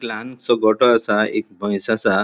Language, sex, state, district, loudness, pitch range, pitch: Konkani, male, Goa, North and South Goa, -19 LUFS, 110-120 Hz, 110 Hz